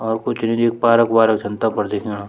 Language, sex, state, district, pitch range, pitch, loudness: Garhwali, male, Uttarakhand, Tehri Garhwal, 105-115 Hz, 110 Hz, -17 LUFS